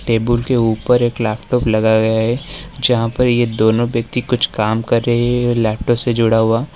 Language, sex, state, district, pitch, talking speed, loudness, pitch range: Hindi, male, Uttar Pradesh, Lalitpur, 115 Hz, 195 wpm, -16 LUFS, 110-120 Hz